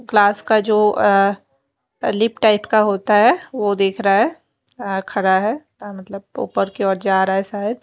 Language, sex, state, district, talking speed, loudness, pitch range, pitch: Hindi, female, Maharashtra, Mumbai Suburban, 200 wpm, -17 LUFS, 195-215 Hz, 205 Hz